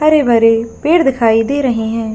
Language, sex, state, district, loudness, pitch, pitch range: Hindi, female, Jharkhand, Jamtara, -13 LUFS, 230 Hz, 225-285 Hz